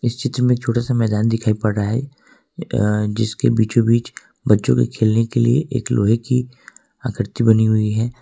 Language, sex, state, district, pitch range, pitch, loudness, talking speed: Hindi, male, Jharkhand, Ranchi, 110-125 Hz, 115 Hz, -18 LUFS, 195 wpm